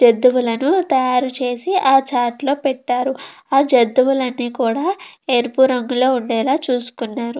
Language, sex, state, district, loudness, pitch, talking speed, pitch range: Telugu, female, Andhra Pradesh, Krishna, -17 LUFS, 255 Hz, 130 wpm, 245-270 Hz